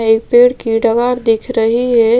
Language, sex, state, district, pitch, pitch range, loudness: Hindi, female, Bihar, Vaishali, 230 Hz, 225-245 Hz, -12 LUFS